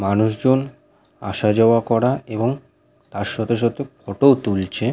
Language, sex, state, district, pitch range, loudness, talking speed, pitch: Bengali, male, West Bengal, Purulia, 100-130 Hz, -19 LUFS, 145 wpm, 115 Hz